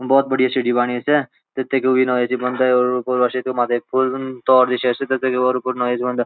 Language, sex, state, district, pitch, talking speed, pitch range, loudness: Garhwali, male, Uttarakhand, Uttarkashi, 125 Hz, 230 wpm, 125-130 Hz, -18 LUFS